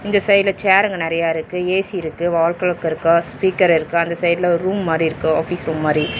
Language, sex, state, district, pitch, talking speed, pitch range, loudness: Tamil, male, Tamil Nadu, Chennai, 170 Hz, 205 wpm, 160-185 Hz, -17 LUFS